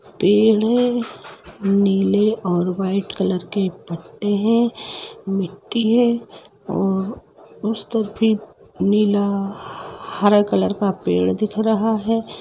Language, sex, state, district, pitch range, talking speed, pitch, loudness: Hindi, female, Jharkhand, Jamtara, 195-220 Hz, 105 wpm, 205 Hz, -19 LUFS